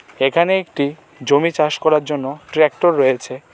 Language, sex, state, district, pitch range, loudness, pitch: Bengali, male, Tripura, West Tripura, 140-165 Hz, -17 LUFS, 150 Hz